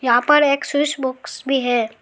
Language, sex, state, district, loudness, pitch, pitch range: Hindi, female, Arunachal Pradesh, Lower Dibang Valley, -18 LUFS, 265 Hz, 245-290 Hz